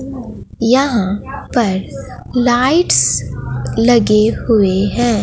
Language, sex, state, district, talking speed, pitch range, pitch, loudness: Hindi, female, Bihar, Katihar, 70 wpm, 190-240 Hz, 220 Hz, -14 LUFS